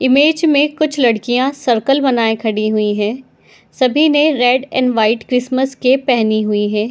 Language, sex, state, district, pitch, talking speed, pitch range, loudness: Hindi, female, Bihar, Madhepura, 250 Hz, 175 wpm, 220-275 Hz, -14 LUFS